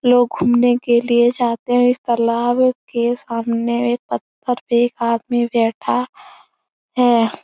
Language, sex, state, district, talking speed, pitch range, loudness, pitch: Hindi, female, Uttar Pradesh, Etah, 135 wpm, 235-245 Hz, -17 LUFS, 240 Hz